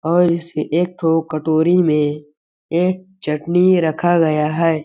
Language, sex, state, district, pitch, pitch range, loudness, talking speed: Hindi, male, Chhattisgarh, Balrampur, 165 Hz, 155-175 Hz, -17 LUFS, 135 wpm